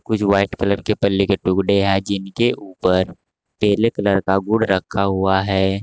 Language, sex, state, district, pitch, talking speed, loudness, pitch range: Hindi, male, Uttar Pradesh, Saharanpur, 100 Hz, 155 wpm, -18 LUFS, 95-100 Hz